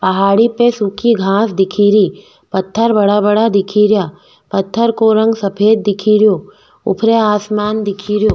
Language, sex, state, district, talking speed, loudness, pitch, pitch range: Rajasthani, female, Rajasthan, Nagaur, 150 wpm, -13 LUFS, 210 Hz, 200-220 Hz